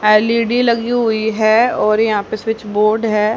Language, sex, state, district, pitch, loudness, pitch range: Hindi, female, Haryana, Charkhi Dadri, 220 Hz, -15 LUFS, 215-230 Hz